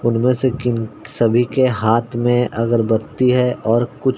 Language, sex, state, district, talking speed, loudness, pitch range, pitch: Hindi, male, Uttar Pradesh, Ghazipur, 170 wpm, -17 LUFS, 115-125 Hz, 120 Hz